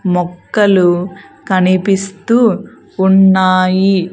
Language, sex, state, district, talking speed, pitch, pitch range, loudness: Telugu, female, Andhra Pradesh, Sri Satya Sai, 45 wpm, 190 Hz, 185-195 Hz, -12 LUFS